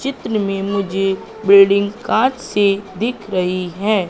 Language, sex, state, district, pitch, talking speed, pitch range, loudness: Hindi, female, Madhya Pradesh, Katni, 200 Hz, 130 wpm, 195-215 Hz, -17 LUFS